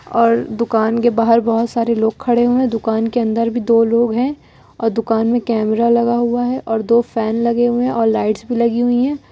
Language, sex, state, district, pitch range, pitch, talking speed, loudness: Hindi, female, Uttar Pradesh, Lucknow, 225-240 Hz, 235 Hz, 220 wpm, -16 LUFS